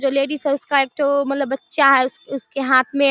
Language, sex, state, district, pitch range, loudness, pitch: Hindi, female, Bihar, Darbhanga, 270-280 Hz, -18 LUFS, 275 Hz